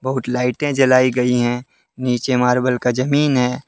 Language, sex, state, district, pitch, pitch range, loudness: Hindi, male, Jharkhand, Deoghar, 125 Hz, 125-130 Hz, -17 LUFS